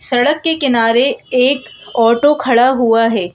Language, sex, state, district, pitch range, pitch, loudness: Hindi, female, Madhya Pradesh, Bhopal, 230-275 Hz, 250 Hz, -13 LUFS